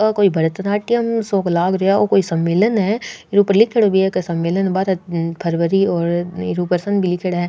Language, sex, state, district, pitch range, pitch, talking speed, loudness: Rajasthani, female, Rajasthan, Nagaur, 175-205 Hz, 190 Hz, 105 wpm, -17 LUFS